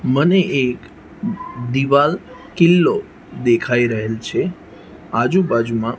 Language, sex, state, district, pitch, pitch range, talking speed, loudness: Gujarati, male, Gujarat, Gandhinagar, 130 Hz, 115-175 Hz, 90 wpm, -17 LUFS